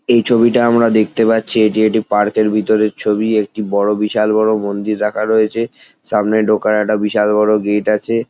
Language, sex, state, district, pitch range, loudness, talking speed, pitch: Bengali, male, West Bengal, Jalpaiguri, 105-110 Hz, -14 LUFS, 180 wpm, 110 Hz